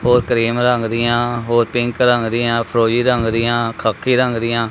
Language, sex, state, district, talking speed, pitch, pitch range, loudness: Punjabi, male, Punjab, Kapurthala, 165 wpm, 120 Hz, 115-120 Hz, -16 LUFS